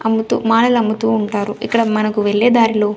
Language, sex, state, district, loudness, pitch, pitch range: Telugu, female, Andhra Pradesh, Sri Satya Sai, -15 LUFS, 220 Hz, 210-230 Hz